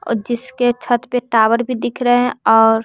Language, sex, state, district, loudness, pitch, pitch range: Hindi, male, Bihar, West Champaran, -16 LUFS, 240 Hz, 225-245 Hz